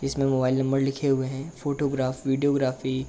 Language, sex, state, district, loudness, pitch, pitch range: Hindi, male, Uttar Pradesh, Jalaun, -25 LUFS, 135 Hz, 130-140 Hz